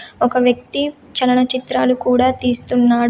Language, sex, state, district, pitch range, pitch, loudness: Telugu, female, Telangana, Komaram Bheem, 245-255 Hz, 250 Hz, -16 LUFS